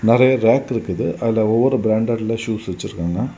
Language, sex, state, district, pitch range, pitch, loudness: Tamil, male, Tamil Nadu, Kanyakumari, 110-120 Hz, 115 Hz, -18 LUFS